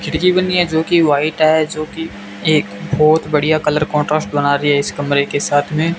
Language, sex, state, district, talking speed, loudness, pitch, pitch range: Hindi, male, Rajasthan, Bikaner, 200 wpm, -15 LUFS, 155 Hz, 145-160 Hz